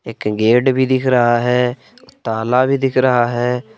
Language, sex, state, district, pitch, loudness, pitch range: Hindi, male, Jharkhand, Palamu, 125 Hz, -15 LUFS, 120-130 Hz